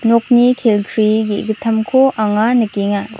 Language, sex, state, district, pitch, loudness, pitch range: Garo, female, Meghalaya, North Garo Hills, 220 Hz, -14 LUFS, 215-240 Hz